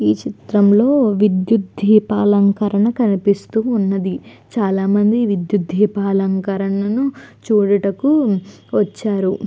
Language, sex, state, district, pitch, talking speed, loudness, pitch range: Telugu, female, Andhra Pradesh, Chittoor, 205 Hz, 70 wpm, -16 LUFS, 195-215 Hz